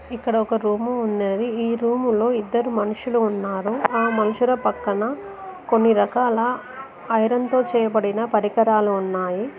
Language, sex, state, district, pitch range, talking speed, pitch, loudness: Telugu, female, Telangana, Mahabubabad, 210-245 Hz, 120 wpm, 230 Hz, -21 LUFS